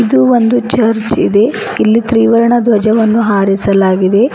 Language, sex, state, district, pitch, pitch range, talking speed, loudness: Kannada, female, Karnataka, Bidar, 225 Hz, 210-240 Hz, 110 wpm, -10 LUFS